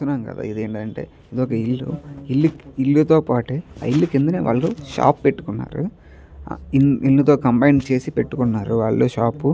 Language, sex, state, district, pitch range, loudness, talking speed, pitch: Telugu, male, Andhra Pradesh, Chittoor, 115-145 Hz, -19 LUFS, 140 wpm, 130 Hz